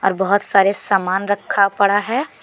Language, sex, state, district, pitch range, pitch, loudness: Hindi, female, Jharkhand, Deoghar, 195-205 Hz, 200 Hz, -17 LUFS